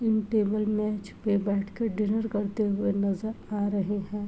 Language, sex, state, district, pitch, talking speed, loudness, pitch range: Hindi, female, Uttar Pradesh, Varanasi, 210 Hz, 170 wpm, -28 LUFS, 200-215 Hz